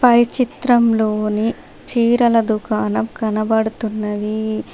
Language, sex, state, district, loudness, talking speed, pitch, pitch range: Telugu, female, Telangana, Adilabad, -18 LUFS, 65 wpm, 220 Hz, 215-235 Hz